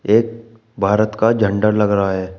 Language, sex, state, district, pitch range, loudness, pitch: Hindi, male, Uttar Pradesh, Shamli, 100-115 Hz, -16 LUFS, 105 Hz